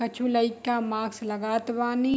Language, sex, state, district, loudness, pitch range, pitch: Hindi, female, Bihar, Darbhanga, -27 LUFS, 220-240 Hz, 235 Hz